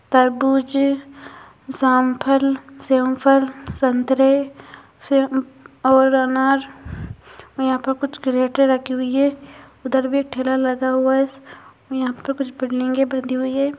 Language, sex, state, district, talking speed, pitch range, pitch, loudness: Hindi, female, Bihar, Purnia, 115 wpm, 260-275 Hz, 265 Hz, -19 LUFS